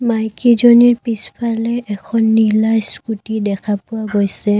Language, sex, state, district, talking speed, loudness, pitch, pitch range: Assamese, female, Assam, Kamrup Metropolitan, 105 wpm, -15 LUFS, 220 Hz, 210-230 Hz